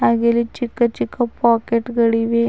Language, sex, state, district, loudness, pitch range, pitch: Kannada, female, Karnataka, Bidar, -18 LUFS, 230-235 Hz, 235 Hz